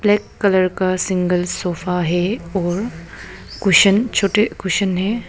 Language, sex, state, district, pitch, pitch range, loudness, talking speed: Hindi, female, Arunachal Pradesh, Papum Pare, 190 Hz, 180-205 Hz, -17 LUFS, 125 wpm